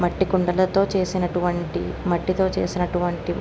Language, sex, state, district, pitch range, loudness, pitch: Telugu, female, Andhra Pradesh, Guntur, 175-185 Hz, -22 LUFS, 180 Hz